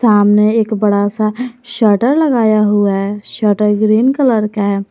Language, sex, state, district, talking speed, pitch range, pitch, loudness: Hindi, female, Jharkhand, Garhwa, 160 wpm, 205-230 Hz, 215 Hz, -13 LUFS